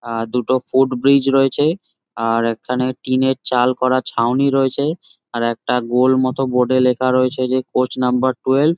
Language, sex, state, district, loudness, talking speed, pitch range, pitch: Bengali, male, West Bengal, Jhargram, -17 LUFS, 180 wpm, 125-135 Hz, 130 Hz